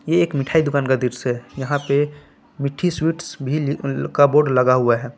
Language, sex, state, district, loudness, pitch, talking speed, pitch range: Hindi, male, Jharkhand, Palamu, -19 LUFS, 140 Hz, 195 wpm, 130-150 Hz